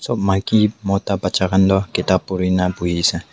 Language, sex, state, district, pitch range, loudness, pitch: Nagamese, male, Nagaland, Dimapur, 90-100 Hz, -18 LUFS, 95 Hz